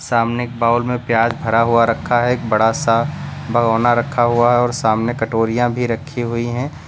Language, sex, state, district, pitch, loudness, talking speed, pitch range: Hindi, male, Uttar Pradesh, Lucknow, 120 Hz, -17 LUFS, 200 wpm, 115-120 Hz